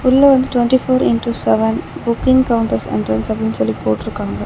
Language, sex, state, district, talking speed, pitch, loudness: Tamil, female, Tamil Nadu, Chennai, 160 wpm, 165 Hz, -16 LUFS